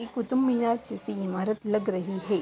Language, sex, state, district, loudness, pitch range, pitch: Hindi, female, Uttar Pradesh, Hamirpur, -28 LUFS, 195-235 Hz, 215 Hz